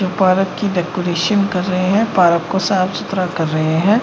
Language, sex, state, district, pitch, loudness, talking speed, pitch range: Hindi, male, Uttar Pradesh, Jalaun, 185 Hz, -16 LUFS, 210 wpm, 175-195 Hz